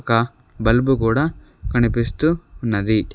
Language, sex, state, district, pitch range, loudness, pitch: Telugu, male, Andhra Pradesh, Sri Satya Sai, 115-135 Hz, -20 LUFS, 120 Hz